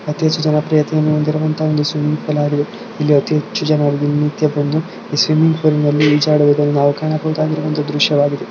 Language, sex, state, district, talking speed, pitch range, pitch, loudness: Kannada, male, Karnataka, Belgaum, 155 wpm, 145-155 Hz, 150 Hz, -15 LUFS